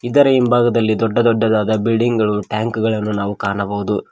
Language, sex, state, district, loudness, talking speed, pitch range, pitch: Kannada, male, Karnataka, Koppal, -16 LUFS, 145 wpm, 105-115 Hz, 110 Hz